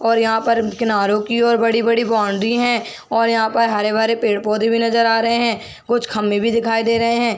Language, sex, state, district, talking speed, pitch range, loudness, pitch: Hindi, female, Chhattisgarh, Bilaspur, 260 wpm, 220-230 Hz, -17 LUFS, 230 Hz